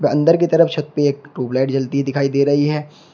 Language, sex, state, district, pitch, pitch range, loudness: Hindi, male, Uttar Pradesh, Shamli, 145 Hz, 140-150 Hz, -17 LUFS